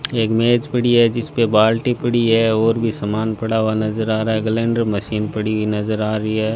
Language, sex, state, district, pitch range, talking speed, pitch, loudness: Hindi, male, Rajasthan, Bikaner, 110-115 Hz, 230 wpm, 110 Hz, -18 LUFS